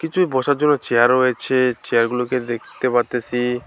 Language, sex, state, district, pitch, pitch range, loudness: Bengali, male, West Bengal, Alipurduar, 125 Hz, 120-130 Hz, -19 LUFS